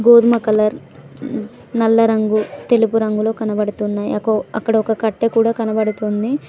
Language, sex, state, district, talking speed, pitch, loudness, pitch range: Telugu, female, Telangana, Mahabubabad, 130 wpm, 220 Hz, -17 LUFS, 215-230 Hz